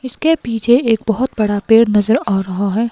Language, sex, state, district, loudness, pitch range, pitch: Hindi, female, Himachal Pradesh, Shimla, -15 LUFS, 210-240 Hz, 225 Hz